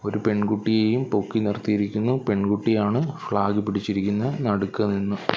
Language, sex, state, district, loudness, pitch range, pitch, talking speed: Malayalam, male, Kerala, Kollam, -23 LUFS, 100-110 Hz, 105 Hz, 100 wpm